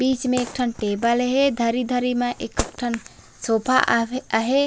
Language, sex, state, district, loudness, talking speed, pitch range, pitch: Chhattisgarhi, female, Chhattisgarh, Raigarh, -22 LUFS, 165 wpm, 235-255 Hz, 245 Hz